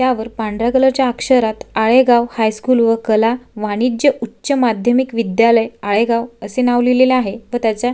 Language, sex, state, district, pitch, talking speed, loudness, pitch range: Marathi, female, Maharashtra, Sindhudurg, 235 Hz, 160 wpm, -15 LUFS, 225-250 Hz